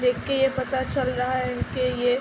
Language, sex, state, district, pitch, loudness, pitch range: Hindi, female, Uttar Pradesh, Hamirpur, 255 Hz, -25 LUFS, 250-260 Hz